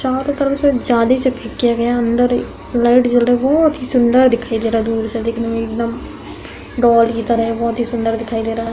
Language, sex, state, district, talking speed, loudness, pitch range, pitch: Hindi, female, Uttar Pradesh, Hamirpur, 260 wpm, -16 LUFS, 230-250 Hz, 235 Hz